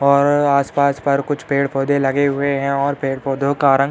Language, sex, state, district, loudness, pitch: Hindi, male, Uttar Pradesh, Hamirpur, -17 LUFS, 140 Hz